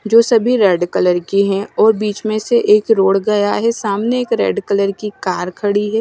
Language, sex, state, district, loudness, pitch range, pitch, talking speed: Hindi, female, Punjab, Kapurthala, -15 LUFS, 195-225 Hz, 210 Hz, 220 wpm